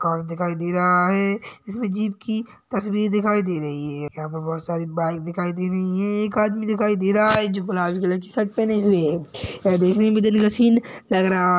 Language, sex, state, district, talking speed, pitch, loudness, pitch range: Hindi, male, Uttar Pradesh, Jalaun, 240 wpm, 190 Hz, -21 LUFS, 175-210 Hz